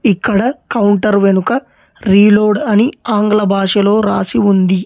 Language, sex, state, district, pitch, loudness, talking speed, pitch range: Telugu, male, Telangana, Hyderabad, 210 Hz, -12 LUFS, 110 wpm, 200-215 Hz